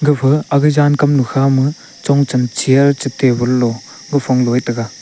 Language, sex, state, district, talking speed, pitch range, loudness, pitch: Wancho, male, Arunachal Pradesh, Longding, 155 wpm, 125-140 Hz, -14 LUFS, 135 Hz